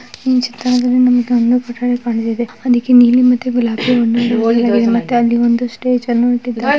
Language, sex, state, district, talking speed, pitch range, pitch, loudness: Kannada, female, Karnataka, Mysore, 115 wpm, 235-250 Hz, 245 Hz, -14 LUFS